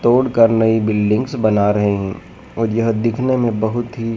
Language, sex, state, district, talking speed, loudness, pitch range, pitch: Hindi, male, Madhya Pradesh, Dhar, 185 wpm, -17 LUFS, 105-115 Hz, 115 Hz